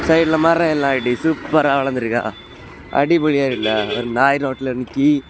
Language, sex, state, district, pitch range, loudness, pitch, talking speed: Tamil, male, Tamil Nadu, Kanyakumari, 125-155 Hz, -17 LUFS, 140 Hz, 125 wpm